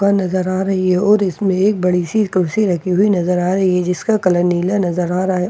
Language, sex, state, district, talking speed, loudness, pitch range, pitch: Hindi, female, Bihar, Katihar, 250 wpm, -16 LUFS, 180-195 Hz, 185 Hz